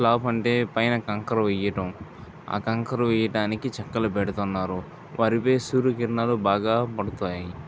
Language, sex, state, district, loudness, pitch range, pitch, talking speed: Telugu, male, Andhra Pradesh, Visakhapatnam, -25 LUFS, 100-120 Hz, 110 Hz, 110 wpm